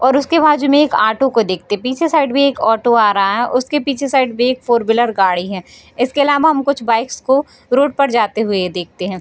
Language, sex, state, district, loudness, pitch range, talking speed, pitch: Hindi, female, Bihar, Darbhanga, -15 LUFS, 215-280 Hz, 240 wpm, 250 Hz